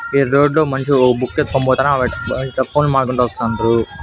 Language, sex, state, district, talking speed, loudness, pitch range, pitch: Telugu, male, Andhra Pradesh, Annamaya, 180 wpm, -16 LUFS, 125-140 Hz, 130 Hz